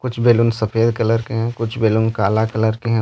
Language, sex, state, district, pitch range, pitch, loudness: Hindi, male, Jharkhand, Deoghar, 110-115 Hz, 115 Hz, -18 LUFS